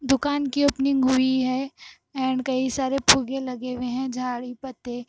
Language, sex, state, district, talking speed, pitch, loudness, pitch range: Hindi, female, Punjab, Fazilka, 155 wpm, 260 Hz, -23 LUFS, 255-270 Hz